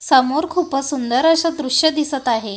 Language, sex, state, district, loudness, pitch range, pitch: Marathi, female, Maharashtra, Gondia, -17 LUFS, 255-315 Hz, 280 Hz